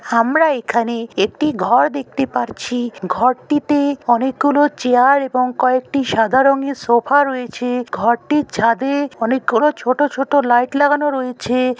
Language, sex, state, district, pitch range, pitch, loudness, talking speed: Bengali, male, West Bengal, Kolkata, 240-285 Hz, 255 Hz, -16 LUFS, 120 wpm